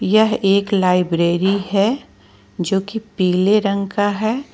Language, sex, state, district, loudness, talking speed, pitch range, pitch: Hindi, female, Jharkhand, Ranchi, -17 LUFS, 130 wpm, 190-215 Hz, 200 Hz